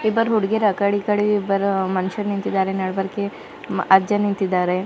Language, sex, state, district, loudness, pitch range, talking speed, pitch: Kannada, female, Karnataka, Bidar, -20 LUFS, 190-205 Hz, 125 wpm, 200 Hz